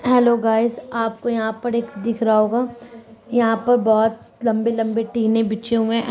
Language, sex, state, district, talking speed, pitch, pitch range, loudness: Hindi, female, Bihar, Sitamarhi, 185 wpm, 230 Hz, 225-235 Hz, -20 LUFS